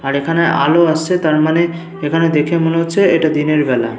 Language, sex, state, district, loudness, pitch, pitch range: Bengali, male, West Bengal, Paschim Medinipur, -14 LUFS, 160 Hz, 150-170 Hz